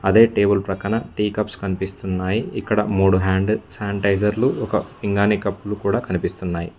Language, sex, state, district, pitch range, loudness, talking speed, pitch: Telugu, male, Telangana, Mahabubabad, 95-105 Hz, -21 LUFS, 130 wpm, 100 Hz